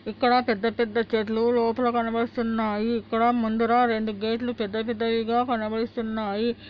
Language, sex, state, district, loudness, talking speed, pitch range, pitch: Telugu, female, Andhra Pradesh, Anantapur, -25 LUFS, 115 wpm, 225-235 Hz, 230 Hz